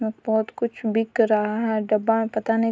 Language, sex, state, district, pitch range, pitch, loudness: Hindi, female, Bihar, Vaishali, 215-225 Hz, 220 Hz, -23 LUFS